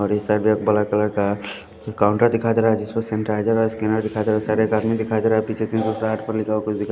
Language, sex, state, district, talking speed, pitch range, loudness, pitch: Hindi, male, Punjab, Fazilka, 320 wpm, 105-110 Hz, -20 LUFS, 110 Hz